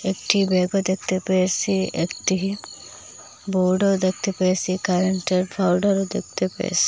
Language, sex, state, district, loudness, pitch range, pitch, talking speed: Bengali, female, Assam, Hailakandi, -22 LUFS, 185-195 Hz, 190 Hz, 95 wpm